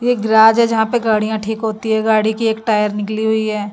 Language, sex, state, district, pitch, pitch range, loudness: Hindi, female, Delhi, New Delhi, 220 Hz, 215-225 Hz, -15 LUFS